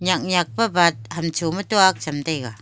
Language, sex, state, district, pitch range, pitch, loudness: Wancho, female, Arunachal Pradesh, Longding, 155-185 Hz, 170 Hz, -20 LUFS